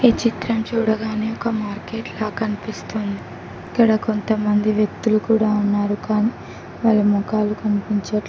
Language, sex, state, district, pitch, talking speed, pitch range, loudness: Telugu, female, Telangana, Mahabubabad, 215 Hz, 115 wpm, 210-225 Hz, -20 LUFS